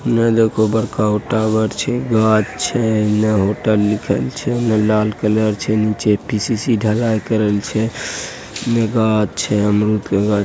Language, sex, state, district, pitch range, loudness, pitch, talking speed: Angika, male, Bihar, Begusarai, 105-110 Hz, -17 LUFS, 110 Hz, 160 wpm